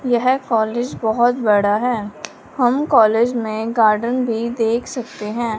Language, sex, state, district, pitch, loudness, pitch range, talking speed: Hindi, male, Punjab, Fazilka, 235 Hz, -18 LUFS, 220-245 Hz, 140 wpm